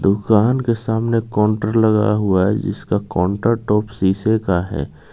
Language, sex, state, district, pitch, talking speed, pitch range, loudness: Hindi, male, Jharkhand, Ranchi, 105 Hz, 150 wpm, 95-110 Hz, -18 LUFS